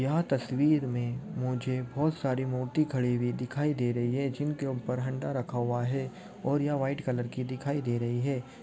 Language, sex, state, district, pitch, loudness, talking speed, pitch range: Hindi, male, Telangana, Nalgonda, 130 Hz, -31 LUFS, 195 wpm, 125-140 Hz